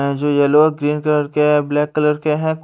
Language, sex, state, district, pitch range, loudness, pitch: Hindi, male, Haryana, Rohtak, 145-150 Hz, -16 LUFS, 150 Hz